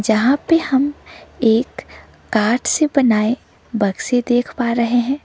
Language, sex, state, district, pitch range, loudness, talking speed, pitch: Hindi, female, Sikkim, Gangtok, 225-270 Hz, -17 LUFS, 135 wpm, 245 Hz